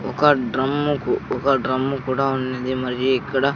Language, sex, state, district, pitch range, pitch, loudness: Telugu, male, Andhra Pradesh, Sri Satya Sai, 130-140 Hz, 130 Hz, -21 LUFS